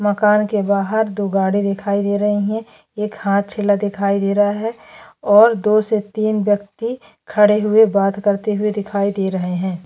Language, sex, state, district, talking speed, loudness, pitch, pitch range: Hindi, female, Maharashtra, Chandrapur, 175 wpm, -17 LUFS, 205 Hz, 200-215 Hz